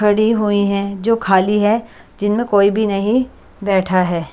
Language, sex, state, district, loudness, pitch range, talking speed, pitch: Hindi, female, Punjab, Kapurthala, -16 LUFS, 195-220 Hz, 165 wpm, 205 Hz